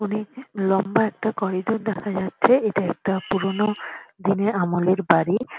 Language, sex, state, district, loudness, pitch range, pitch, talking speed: Bengali, female, West Bengal, Kolkata, -22 LUFS, 190-215 Hz, 195 Hz, 130 wpm